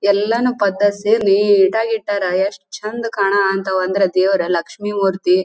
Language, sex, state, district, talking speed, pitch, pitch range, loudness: Kannada, female, Karnataka, Dharwad, 145 wpm, 200 Hz, 190-205 Hz, -17 LUFS